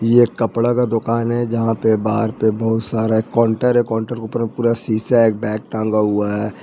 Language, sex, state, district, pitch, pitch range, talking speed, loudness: Hindi, male, Jharkhand, Ranchi, 115 Hz, 110-115 Hz, 225 wpm, -18 LUFS